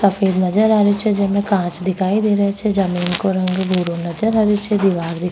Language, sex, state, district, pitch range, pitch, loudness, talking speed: Rajasthani, female, Rajasthan, Nagaur, 185-205 Hz, 195 Hz, -17 LUFS, 225 wpm